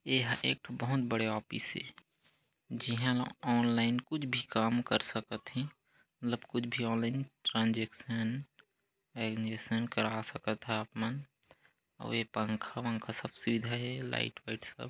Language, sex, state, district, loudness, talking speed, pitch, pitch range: Hindi, male, Chhattisgarh, Korba, -34 LUFS, 150 wpm, 115 Hz, 110-125 Hz